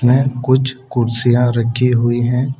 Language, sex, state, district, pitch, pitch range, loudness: Hindi, male, Uttar Pradesh, Saharanpur, 125 Hz, 120-130 Hz, -15 LUFS